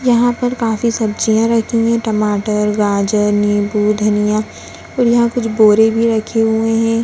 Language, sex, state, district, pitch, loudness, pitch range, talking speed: Hindi, female, Bihar, Jahanabad, 220 Hz, -14 LUFS, 210-230 Hz, 160 wpm